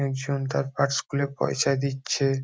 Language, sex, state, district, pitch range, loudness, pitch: Bengali, male, West Bengal, North 24 Parganas, 135-140 Hz, -26 LUFS, 135 Hz